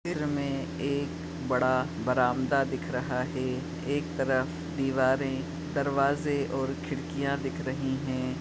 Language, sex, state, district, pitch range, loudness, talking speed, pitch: Hindi, female, Maharashtra, Nagpur, 130-150 Hz, -30 LUFS, 120 wpm, 140 Hz